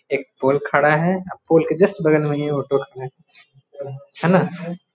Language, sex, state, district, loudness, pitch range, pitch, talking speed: Hindi, male, Bihar, Muzaffarpur, -19 LUFS, 140-175 Hz, 150 Hz, 195 wpm